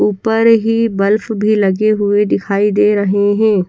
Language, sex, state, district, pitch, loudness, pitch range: Hindi, female, Bihar, Katihar, 210 Hz, -13 LUFS, 200-220 Hz